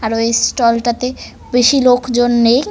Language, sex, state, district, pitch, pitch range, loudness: Bengali, female, West Bengal, North 24 Parganas, 240 Hz, 230-250 Hz, -13 LUFS